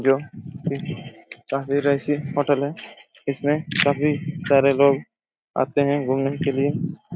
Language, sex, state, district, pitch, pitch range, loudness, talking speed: Hindi, male, Chhattisgarh, Raigarh, 145 Hz, 140-150 Hz, -22 LUFS, 125 wpm